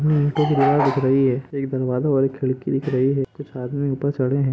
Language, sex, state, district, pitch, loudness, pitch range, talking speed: Hindi, male, Jharkhand, Jamtara, 135 Hz, -21 LUFS, 130-140 Hz, 240 wpm